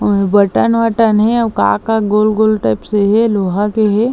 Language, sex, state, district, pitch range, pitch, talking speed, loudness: Chhattisgarhi, female, Chhattisgarh, Bilaspur, 205-225 Hz, 215 Hz, 205 wpm, -13 LUFS